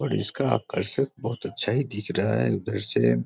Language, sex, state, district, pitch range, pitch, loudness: Hindi, male, Bihar, Samastipur, 100-135 Hz, 115 Hz, -26 LUFS